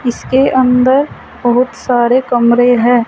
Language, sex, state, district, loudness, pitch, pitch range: Hindi, female, Uttar Pradesh, Saharanpur, -11 LUFS, 245 Hz, 240-255 Hz